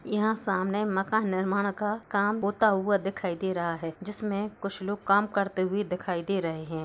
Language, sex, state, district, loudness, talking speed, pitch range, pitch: Hindi, female, Uttar Pradesh, Hamirpur, -28 LUFS, 185 wpm, 185-210 Hz, 200 Hz